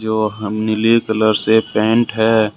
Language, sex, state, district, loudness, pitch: Hindi, male, Jharkhand, Ranchi, -15 LUFS, 110 Hz